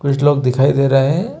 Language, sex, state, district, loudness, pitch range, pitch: Hindi, male, Chhattisgarh, Bastar, -14 LUFS, 135-145 Hz, 140 Hz